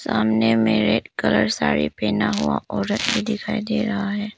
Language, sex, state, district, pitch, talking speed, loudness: Hindi, female, Arunachal Pradesh, Papum Pare, 110 Hz, 180 wpm, -21 LUFS